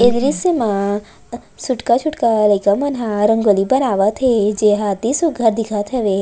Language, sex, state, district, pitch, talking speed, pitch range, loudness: Chhattisgarhi, female, Chhattisgarh, Raigarh, 225 Hz, 165 wpm, 205-255 Hz, -16 LUFS